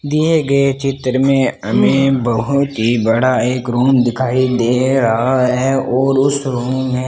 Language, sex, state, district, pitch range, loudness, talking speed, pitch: Hindi, male, Rajasthan, Bikaner, 125-135 Hz, -15 LUFS, 160 wpm, 130 Hz